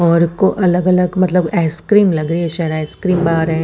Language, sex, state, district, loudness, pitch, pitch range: Hindi, female, Chandigarh, Chandigarh, -15 LUFS, 170 Hz, 165-185 Hz